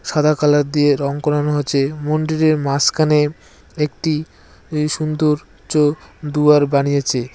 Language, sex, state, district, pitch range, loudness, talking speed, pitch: Bengali, male, West Bengal, Cooch Behar, 145-155 Hz, -17 LUFS, 105 wpm, 150 Hz